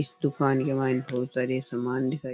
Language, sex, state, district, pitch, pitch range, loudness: Rajasthani, male, Rajasthan, Churu, 130 Hz, 125-140 Hz, -28 LUFS